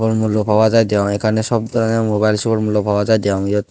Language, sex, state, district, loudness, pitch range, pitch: Chakma, male, Tripura, Dhalai, -16 LUFS, 105-110 Hz, 110 Hz